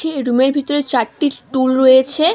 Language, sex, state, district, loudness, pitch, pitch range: Bengali, female, West Bengal, Alipurduar, -15 LUFS, 270 Hz, 260-290 Hz